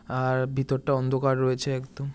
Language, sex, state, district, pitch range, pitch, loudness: Bengali, male, West Bengal, North 24 Parganas, 130-135 Hz, 135 Hz, -26 LUFS